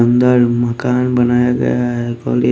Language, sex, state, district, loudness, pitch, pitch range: Hindi, male, Haryana, Rohtak, -14 LUFS, 120 Hz, 120-125 Hz